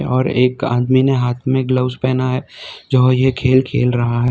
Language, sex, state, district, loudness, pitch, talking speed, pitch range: Hindi, male, Gujarat, Valsad, -16 LUFS, 130 Hz, 210 wpm, 125-130 Hz